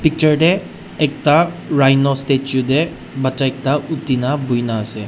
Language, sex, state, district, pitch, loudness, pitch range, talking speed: Nagamese, male, Nagaland, Dimapur, 140 Hz, -17 LUFS, 130-155 Hz, 140 wpm